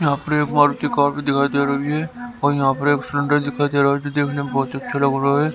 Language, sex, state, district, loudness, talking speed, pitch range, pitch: Hindi, male, Haryana, Rohtak, -19 LUFS, 280 wpm, 140-145 Hz, 145 Hz